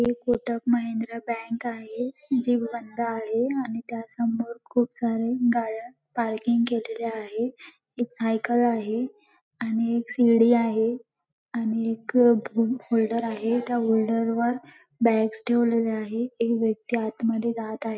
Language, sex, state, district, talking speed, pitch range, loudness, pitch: Marathi, female, Maharashtra, Dhule, 125 wpm, 225-240 Hz, -25 LUFS, 230 Hz